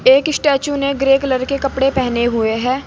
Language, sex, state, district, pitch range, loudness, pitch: Hindi, female, Uttar Pradesh, Saharanpur, 255-275 Hz, -16 LUFS, 270 Hz